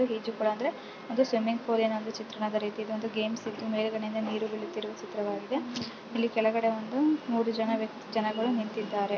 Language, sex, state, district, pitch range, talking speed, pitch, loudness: Kannada, female, Karnataka, Raichur, 215-230 Hz, 210 wpm, 220 Hz, -31 LUFS